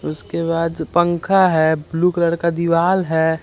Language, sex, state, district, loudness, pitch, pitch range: Hindi, male, Bihar, Kaimur, -17 LUFS, 165 Hz, 160-175 Hz